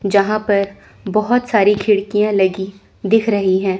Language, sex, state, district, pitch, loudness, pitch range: Hindi, female, Chandigarh, Chandigarh, 205 Hz, -16 LUFS, 195-215 Hz